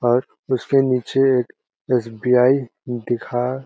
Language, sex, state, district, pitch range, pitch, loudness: Hindi, male, Chhattisgarh, Balrampur, 120-130 Hz, 125 Hz, -20 LUFS